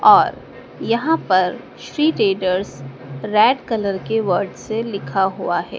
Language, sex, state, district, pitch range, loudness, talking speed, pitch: Hindi, female, Madhya Pradesh, Dhar, 185-240 Hz, -19 LUFS, 135 wpm, 210 Hz